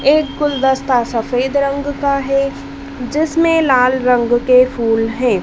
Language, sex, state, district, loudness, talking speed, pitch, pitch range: Hindi, female, Madhya Pradesh, Dhar, -15 LUFS, 135 wpm, 275 Hz, 250-280 Hz